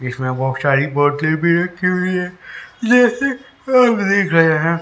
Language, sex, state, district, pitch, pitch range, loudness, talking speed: Hindi, male, Haryana, Rohtak, 175 Hz, 145-225 Hz, -16 LUFS, 150 wpm